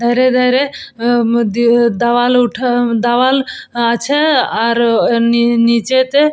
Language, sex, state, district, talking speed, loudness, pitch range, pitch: Bengali, female, West Bengal, Purulia, 105 wpm, -13 LUFS, 235-250 Hz, 240 Hz